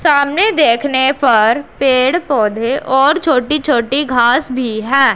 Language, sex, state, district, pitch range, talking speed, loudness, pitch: Hindi, female, Punjab, Pathankot, 240-290 Hz, 130 wpm, -13 LUFS, 270 Hz